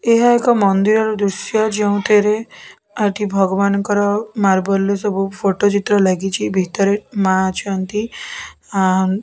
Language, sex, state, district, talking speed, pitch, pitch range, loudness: Odia, female, Odisha, Khordha, 115 wpm, 200 Hz, 195-215 Hz, -17 LUFS